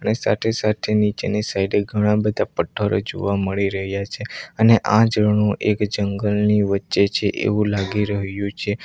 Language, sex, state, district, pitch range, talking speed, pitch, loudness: Gujarati, male, Gujarat, Valsad, 100-105 Hz, 140 wpm, 105 Hz, -20 LUFS